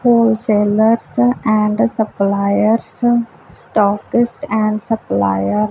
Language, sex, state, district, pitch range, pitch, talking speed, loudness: Punjabi, female, Punjab, Kapurthala, 200-230 Hz, 220 Hz, 75 wpm, -16 LUFS